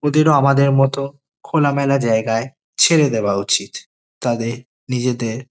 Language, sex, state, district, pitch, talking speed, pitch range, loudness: Bengali, male, West Bengal, Kolkata, 135 Hz, 120 wpm, 115-140 Hz, -17 LUFS